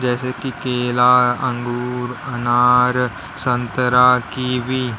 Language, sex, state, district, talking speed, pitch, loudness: Hindi, male, Uttar Pradesh, Lalitpur, 85 wpm, 125 Hz, -18 LUFS